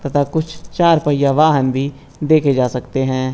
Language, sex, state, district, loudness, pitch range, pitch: Hindi, male, Chhattisgarh, Balrampur, -16 LUFS, 130-155 Hz, 140 Hz